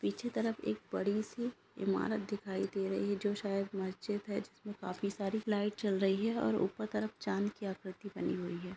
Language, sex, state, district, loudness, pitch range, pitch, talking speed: Hindi, female, Bihar, Jahanabad, -37 LUFS, 195-210 Hz, 200 Hz, 200 wpm